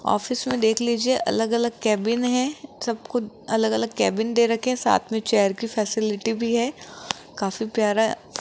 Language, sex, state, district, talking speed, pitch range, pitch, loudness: Hindi, female, Rajasthan, Jaipur, 180 wpm, 220-245 Hz, 230 Hz, -23 LUFS